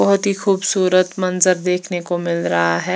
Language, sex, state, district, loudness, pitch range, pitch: Hindi, female, Chandigarh, Chandigarh, -17 LUFS, 175-190 Hz, 185 Hz